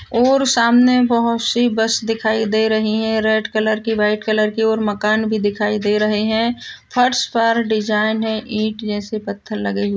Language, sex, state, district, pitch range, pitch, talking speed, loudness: Hindi, female, Uttarakhand, Tehri Garhwal, 215-230 Hz, 220 Hz, 185 wpm, -17 LUFS